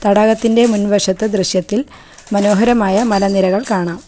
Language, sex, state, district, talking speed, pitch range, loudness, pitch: Malayalam, female, Kerala, Kollam, 90 wpm, 195-220 Hz, -14 LUFS, 205 Hz